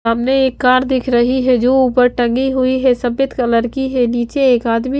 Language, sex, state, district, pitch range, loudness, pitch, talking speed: Hindi, female, Bihar, Kaimur, 240-260 Hz, -14 LUFS, 255 Hz, 215 wpm